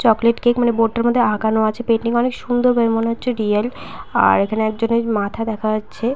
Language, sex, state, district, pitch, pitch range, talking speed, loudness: Bengali, female, West Bengal, Purulia, 230 Hz, 220-240 Hz, 195 wpm, -18 LUFS